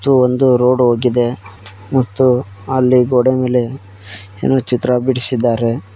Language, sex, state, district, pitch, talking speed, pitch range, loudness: Kannada, male, Karnataka, Koppal, 125 Hz, 110 wpm, 115-130 Hz, -14 LUFS